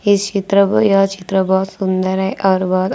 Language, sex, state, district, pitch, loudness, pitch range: Hindi, female, Maharashtra, Gondia, 190 Hz, -15 LUFS, 190-200 Hz